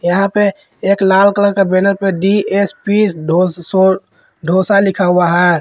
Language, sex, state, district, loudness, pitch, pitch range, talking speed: Hindi, male, Jharkhand, Ranchi, -13 LUFS, 195 Hz, 180-200 Hz, 150 wpm